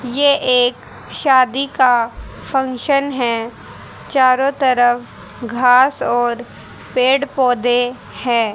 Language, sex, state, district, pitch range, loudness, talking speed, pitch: Hindi, female, Haryana, Rohtak, 245-270 Hz, -16 LUFS, 90 wpm, 255 Hz